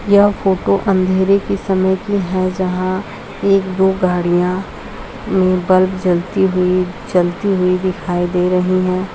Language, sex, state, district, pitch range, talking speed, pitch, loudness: Hindi, female, Uttar Pradesh, Jalaun, 180-195 Hz, 130 wpm, 185 Hz, -16 LUFS